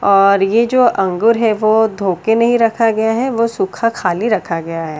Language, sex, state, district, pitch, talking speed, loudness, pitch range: Hindi, female, Delhi, New Delhi, 220 Hz, 215 wpm, -14 LUFS, 195-230 Hz